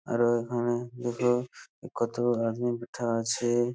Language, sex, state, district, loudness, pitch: Bengali, male, West Bengal, Purulia, -29 LUFS, 120 Hz